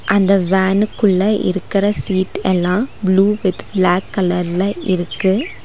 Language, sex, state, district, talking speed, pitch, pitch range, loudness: Tamil, female, Tamil Nadu, Nilgiris, 105 wpm, 190 Hz, 185-200 Hz, -16 LUFS